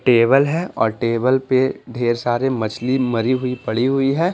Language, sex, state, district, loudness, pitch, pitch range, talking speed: Hindi, male, Bihar, Patna, -19 LUFS, 125 Hz, 120-135 Hz, 180 wpm